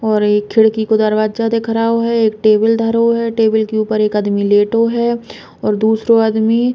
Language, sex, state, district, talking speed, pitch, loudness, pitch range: Bundeli, female, Uttar Pradesh, Hamirpur, 205 wpm, 220 Hz, -14 LUFS, 215-230 Hz